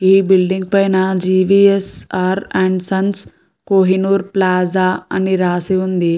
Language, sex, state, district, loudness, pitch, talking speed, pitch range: Telugu, female, Andhra Pradesh, Guntur, -15 LUFS, 190 Hz, 135 wpm, 185-195 Hz